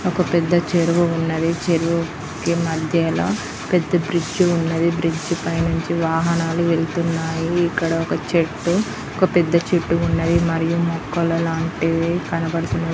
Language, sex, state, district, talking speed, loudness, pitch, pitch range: Telugu, female, Andhra Pradesh, Guntur, 120 wpm, -20 LUFS, 165 Hz, 165-170 Hz